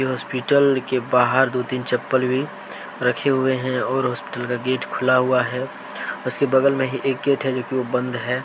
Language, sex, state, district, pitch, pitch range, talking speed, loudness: Hindi, male, Jharkhand, Deoghar, 130 Hz, 125-130 Hz, 205 wpm, -21 LUFS